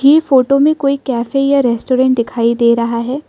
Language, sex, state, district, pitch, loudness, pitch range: Hindi, female, Arunachal Pradesh, Lower Dibang Valley, 260 Hz, -13 LUFS, 235-275 Hz